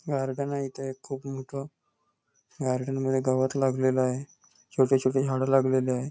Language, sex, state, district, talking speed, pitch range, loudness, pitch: Marathi, male, Maharashtra, Nagpur, 155 wpm, 130-135 Hz, -27 LUFS, 135 Hz